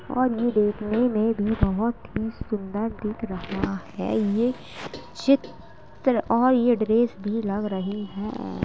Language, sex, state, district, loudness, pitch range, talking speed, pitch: Hindi, male, Uttar Pradesh, Jalaun, -25 LUFS, 205-240 Hz, 140 wpm, 220 Hz